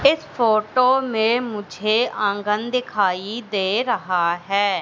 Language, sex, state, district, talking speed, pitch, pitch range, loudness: Hindi, female, Madhya Pradesh, Katni, 110 wpm, 215 Hz, 200-245 Hz, -20 LUFS